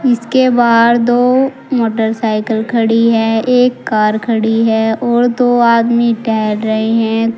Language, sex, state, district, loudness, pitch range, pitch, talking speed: Hindi, female, Uttar Pradesh, Saharanpur, -12 LUFS, 225-245 Hz, 230 Hz, 130 wpm